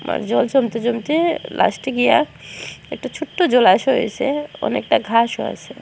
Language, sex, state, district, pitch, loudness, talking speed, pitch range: Bengali, female, Assam, Hailakandi, 265 Hz, -18 LUFS, 135 wpm, 240-300 Hz